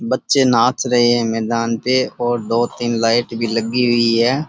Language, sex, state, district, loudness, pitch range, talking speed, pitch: Rajasthani, male, Rajasthan, Churu, -17 LUFS, 115-125 Hz, 185 wpm, 120 Hz